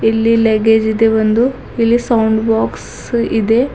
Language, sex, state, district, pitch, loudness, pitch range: Kannada, female, Karnataka, Bidar, 225 Hz, -14 LUFS, 220-230 Hz